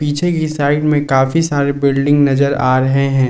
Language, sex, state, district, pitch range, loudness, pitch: Hindi, male, Jharkhand, Palamu, 135-150 Hz, -14 LUFS, 140 Hz